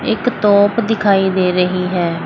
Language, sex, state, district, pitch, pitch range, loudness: Hindi, female, Chandigarh, Chandigarh, 200 Hz, 180-220 Hz, -14 LUFS